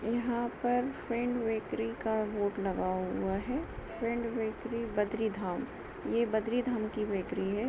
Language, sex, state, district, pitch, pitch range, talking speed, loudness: Hindi, female, Jharkhand, Sahebganj, 225 Hz, 205-235 Hz, 150 wpm, -34 LUFS